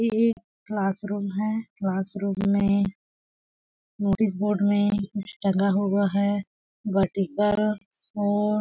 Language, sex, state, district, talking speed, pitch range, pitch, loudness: Hindi, female, Chhattisgarh, Balrampur, 120 wpm, 195-210 Hz, 200 Hz, -25 LUFS